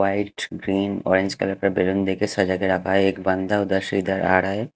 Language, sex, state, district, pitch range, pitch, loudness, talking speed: Hindi, male, Haryana, Jhajjar, 95-100 Hz, 95 Hz, -22 LUFS, 225 wpm